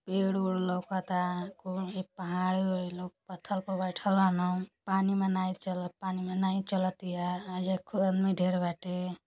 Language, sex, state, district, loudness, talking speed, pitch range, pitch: Bhojpuri, female, Uttar Pradesh, Gorakhpur, -32 LUFS, 140 wpm, 180-190 Hz, 185 Hz